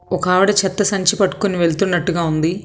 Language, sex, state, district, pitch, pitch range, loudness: Telugu, female, Telangana, Hyderabad, 185 Hz, 175-195 Hz, -17 LUFS